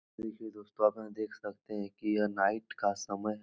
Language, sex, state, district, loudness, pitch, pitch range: Hindi, male, Bihar, Jahanabad, -34 LUFS, 105 Hz, 100-110 Hz